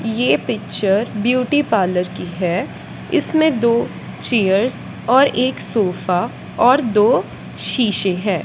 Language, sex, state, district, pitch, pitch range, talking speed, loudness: Hindi, female, Punjab, Kapurthala, 220 Hz, 190-250 Hz, 115 wpm, -18 LUFS